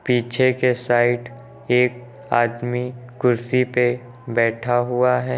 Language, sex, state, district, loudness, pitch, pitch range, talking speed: Hindi, male, Uttar Pradesh, Lucknow, -20 LUFS, 125 Hz, 120-125 Hz, 110 wpm